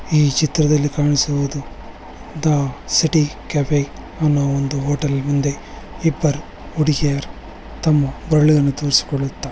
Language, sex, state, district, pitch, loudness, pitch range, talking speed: Kannada, male, Karnataka, Bellary, 145 Hz, -18 LUFS, 140-150 Hz, 105 wpm